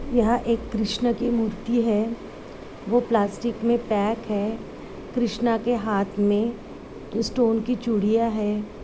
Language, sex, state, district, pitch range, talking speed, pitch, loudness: Hindi, female, Uttar Pradesh, Muzaffarnagar, 215-235 Hz, 130 wpm, 225 Hz, -24 LUFS